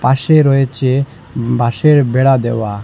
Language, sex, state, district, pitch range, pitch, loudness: Bengali, male, Assam, Hailakandi, 120-140 Hz, 130 Hz, -13 LUFS